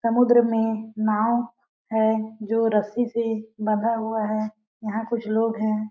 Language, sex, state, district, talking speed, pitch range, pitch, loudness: Hindi, female, Chhattisgarh, Balrampur, 140 wpm, 215-230 Hz, 220 Hz, -24 LUFS